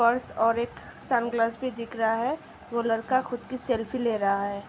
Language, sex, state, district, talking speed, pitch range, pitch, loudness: Hindi, female, Uttar Pradesh, Hamirpur, 205 wpm, 225-250 Hz, 235 Hz, -28 LUFS